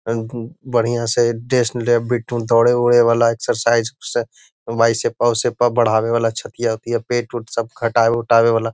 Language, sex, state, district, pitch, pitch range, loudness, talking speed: Magahi, male, Bihar, Gaya, 115 Hz, 115-120 Hz, -18 LUFS, 135 wpm